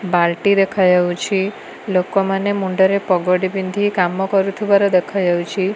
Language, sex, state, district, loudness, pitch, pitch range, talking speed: Odia, female, Odisha, Malkangiri, -17 LUFS, 190 Hz, 180-200 Hz, 115 wpm